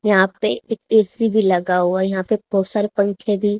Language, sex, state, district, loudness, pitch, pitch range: Hindi, female, Haryana, Charkhi Dadri, -19 LUFS, 205 Hz, 190-215 Hz